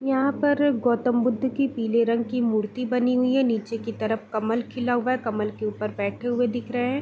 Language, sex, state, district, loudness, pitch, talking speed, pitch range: Hindi, female, Uttar Pradesh, Deoria, -24 LUFS, 240 Hz, 230 wpm, 225-250 Hz